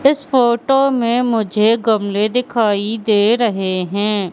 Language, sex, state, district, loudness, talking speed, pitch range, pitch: Hindi, female, Madhya Pradesh, Katni, -16 LUFS, 125 wpm, 205-240 Hz, 225 Hz